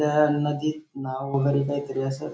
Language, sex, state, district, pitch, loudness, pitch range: Marathi, male, Maharashtra, Dhule, 140 Hz, -25 LUFS, 135-150 Hz